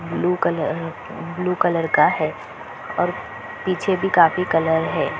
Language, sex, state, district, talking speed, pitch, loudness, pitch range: Hindi, female, Chhattisgarh, Balrampur, 160 wpm, 180 Hz, -20 LUFS, 165-180 Hz